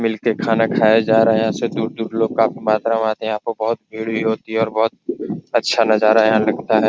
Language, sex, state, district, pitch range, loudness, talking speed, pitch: Hindi, male, Bihar, Supaul, 110-115 Hz, -18 LUFS, 255 wpm, 110 Hz